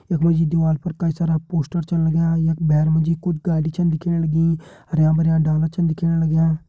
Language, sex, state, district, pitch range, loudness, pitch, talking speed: Hindi, male, Uttarakhand, Uttarkashi, 160-165 Hz, -20 LUFS, 165 Hz, 225 wpm